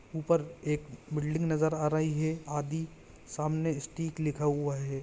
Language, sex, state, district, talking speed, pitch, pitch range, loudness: Hindi, male, Chhattisgarh, Bilaspur, 155 wpm, 155 Hz, 150-160 Hz, -32 LUFS